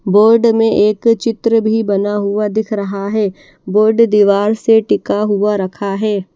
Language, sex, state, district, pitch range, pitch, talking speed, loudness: Hindi, female, Haryana, Charkhi Dadri, 200-225 Hz, 210 Hz, 160 wpm, -14 LUFS